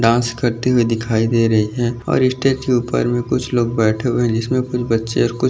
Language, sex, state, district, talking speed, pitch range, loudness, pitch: Hindi, male, Maharashtra, Aurangabad, 275 wpm, 115-125 Hz, -17 LUFS, 120 Hz